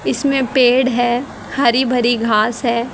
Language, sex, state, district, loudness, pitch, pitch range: Hindi, female, Haryana, Rohtak, -15 LUFS, 245 Hz, 235-260 Hz